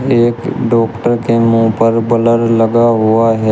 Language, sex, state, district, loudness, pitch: Hindi, male, Uttar Pradesh, Shamli, -12 LUFS, 115 Hz